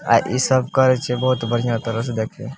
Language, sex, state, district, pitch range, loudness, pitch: Maithili, male, Bihar, Samastipur, 120-130 Hz, -19 LUFS, 125 Hz